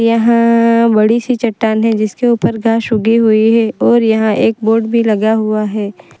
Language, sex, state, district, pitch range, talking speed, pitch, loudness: Hindi, female, Gujarat, Valsad, 220-230 Hz, 185 wpm, 225 Hz, -12 LUFS